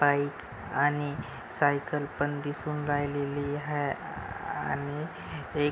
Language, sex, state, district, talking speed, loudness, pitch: Marathi, male, Maharashtra, Chandrapur, 105 wpm, -31 LUFS, 145 Hz